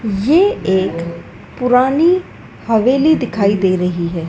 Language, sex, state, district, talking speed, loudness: Hindi, female, Madhya Pradesh, Dhar, 110 wpm, -15 LUFS